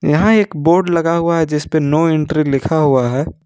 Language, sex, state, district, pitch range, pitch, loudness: Hindi, male, Jharkhand, Ranchi, 150-165 Hz, 155 Hz, -14 LUFS